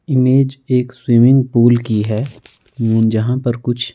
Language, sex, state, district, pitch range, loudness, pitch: Hindi, male, Himachal Pradesh, Shimla, 115-130 Hz, -15 LUFS, 120 Hz